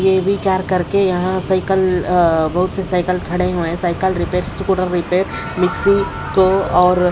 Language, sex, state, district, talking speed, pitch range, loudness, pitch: Hindi, female, Odisha, Sambalpur, 145 wpm, 180-190 Hz, -17 LUFS, 185 Hz